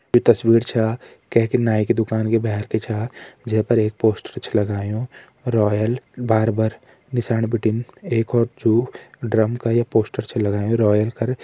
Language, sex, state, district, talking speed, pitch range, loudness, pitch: Hindi, male, Uttarakhand, Uttarkashi, 175 wpm, 110-120 Hz, -20 LUFS, 115 Hz